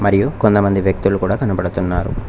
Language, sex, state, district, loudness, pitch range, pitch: Telugu, male, Telangana, Mahabubabad, -17 LUFS, 95-105 Hz, 100 Hz